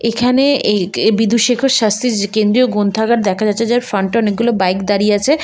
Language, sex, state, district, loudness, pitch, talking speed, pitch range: Bengali, female, West Bengal, Malda, -14 LUFS, 220 Hz, 165 wpm, 205-245 Hz